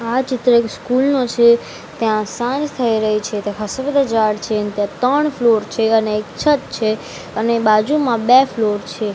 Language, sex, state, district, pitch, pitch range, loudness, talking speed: Gujarati, female, Gujarat, Gandhinagar, 230 Hz, 215-255 Hz, -17 LUFS, 190 wpm